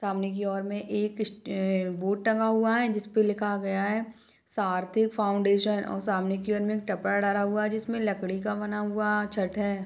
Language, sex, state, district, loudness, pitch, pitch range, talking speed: Hindi, female, Chhattisgarh, Bastar, -28 LUFS, 205 Hz, 195-215 Hz, 200 wpm